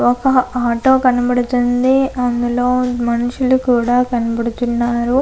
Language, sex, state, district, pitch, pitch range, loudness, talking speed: Telugu, female, Andhra Pradesh, Anantapur, 245 Hz, 240-255 Hz, -15 LUFS, 80 wpm